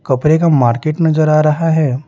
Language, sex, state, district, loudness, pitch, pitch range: Hindi, male, Bihar, Patna, -13 LUFS, 155 Hz, 140-160 Hz